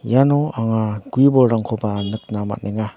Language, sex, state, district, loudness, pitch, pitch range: Garo, male, Meghalaya, North Garo Hills, -19 LUFS, 110 Hz, 105-130 Hz